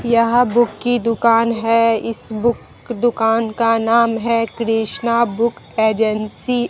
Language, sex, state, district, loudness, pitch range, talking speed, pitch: Hindi, female, Bihar, Katihar, -17 LUFS, 225-235 Hz, 135 wpm, 230 Hz